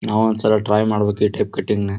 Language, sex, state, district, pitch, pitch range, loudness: Kannada, male, Karnataka, Dharwad, 105 Hz, 105-110 Hz, -18 LUFS